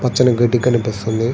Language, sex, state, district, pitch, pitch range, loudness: Telugu, male, Andhra Pradesh, Srikakulam, 120 Hz, 115-125 Hz, -16 LUFS